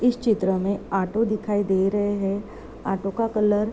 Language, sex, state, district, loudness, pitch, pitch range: Hindi, female, Uttar Pradesh, Deoria, -24 LUFS, 205 Hz, 195-215 Hz